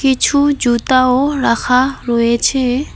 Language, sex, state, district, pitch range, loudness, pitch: Bengali, female, West Bengal, Alipurduar, 240-275 Hz, -14 LUFS, 255 Hz